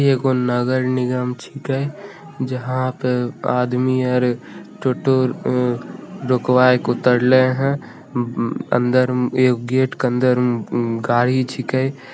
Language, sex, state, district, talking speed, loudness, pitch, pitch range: Maithili, male, Bihar, Begusarai, 105 wpm, -19 LUFS, 125 Hz, 125-130 Hz